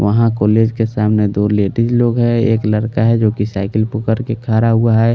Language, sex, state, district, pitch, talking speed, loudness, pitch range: Hindi, male, Delhi, New Delhi, 110 Hz, 210 wpm, -15 LUFS, 105-115 Hz